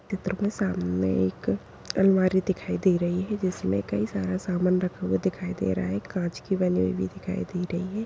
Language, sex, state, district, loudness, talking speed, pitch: Kumaoni, female, Uttarakhand, Tehri Garhwal, -27 LUFS, 210 wpm, 175 Hz